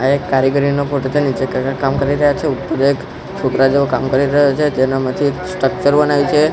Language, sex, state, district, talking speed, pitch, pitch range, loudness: Gujarati, male, Gujarat, Gandhinagar, 220 wpm, 140 Hz, 135-145 Hz, -15 LUFS